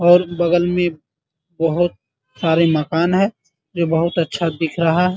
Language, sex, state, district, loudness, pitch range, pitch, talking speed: Hindi, male, Bihar, Muzaffarpur, -18 LUFS, 160-175 Hz, 170 Hz, 160 wpm